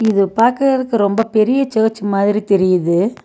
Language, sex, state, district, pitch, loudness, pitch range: Tamil, female, Tamil Nadu, Nilgiris, 215 Hz, -15 LUFS, 200-230 Hz